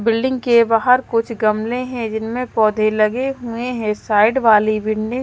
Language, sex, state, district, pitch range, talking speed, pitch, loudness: Hindi, female, Maharashtra, Mumbai Suburban, 215-250 Hz, 170 wpm, 230 Hz, -17 LUFS